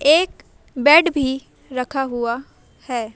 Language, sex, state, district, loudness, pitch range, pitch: Hindi, female, Madhya Pradesh, Umaria, -18 LUFS, 250-290 Hz, 265 Hz